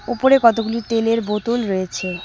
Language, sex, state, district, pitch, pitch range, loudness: Bengali, female, West Bengal, Cooch Behar, 225 Hz, 195-235 Hz, -18 LUFS